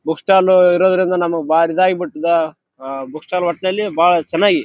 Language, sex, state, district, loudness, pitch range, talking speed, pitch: Kannada, male, Karnataka, Raichur, -15 LUFS, 160-185 Hz, 105 wpm, 175 Hz